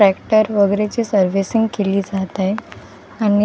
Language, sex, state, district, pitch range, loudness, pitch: Marathi, female, Maharashtra, Gondia, 195-215 Hz, -18 LUFS, 205 Hz